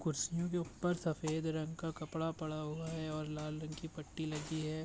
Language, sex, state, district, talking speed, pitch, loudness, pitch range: Hindi, male, Bihar, Bhagalpur, 210 wpm, 155 Hz, -40 LUFS, 155-160 Hz